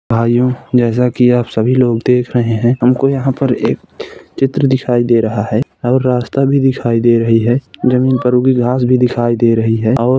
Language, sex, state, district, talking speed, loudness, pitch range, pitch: Hindi, male, Uttar Pradesh, Hamirpur, 205 wpm, -13 LUFS, 120-130 Hz, 125 Hz